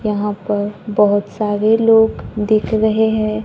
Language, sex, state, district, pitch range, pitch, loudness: Hindi, female, Maharashtra, Gondia, 210-220 Hz, 215 Hz, -16 LUFS